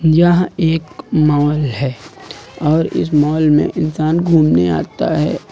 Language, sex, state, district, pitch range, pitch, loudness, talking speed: Hindi, male, Uttar Pradesh, Lucknow, 145-165 Hz, 155 Hz, -15 LUFS, 130 wpm